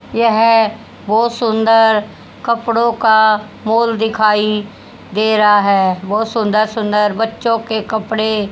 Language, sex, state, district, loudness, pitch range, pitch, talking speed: Hindi, female, Haryana, Rohtak, -14 LUFS, 210-225 Hz, 220 Hz, 115 wpm